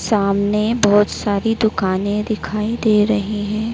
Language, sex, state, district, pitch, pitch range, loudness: Hindi, female, Madhya Pradesh, Dhar, 210 Hz, 205-220 Hz, -18 LUFS